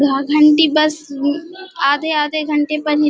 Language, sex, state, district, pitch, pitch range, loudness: Hindi, female, Bihar, Vaishali, 300 Hz, 295-310 Hz, -16 LUFS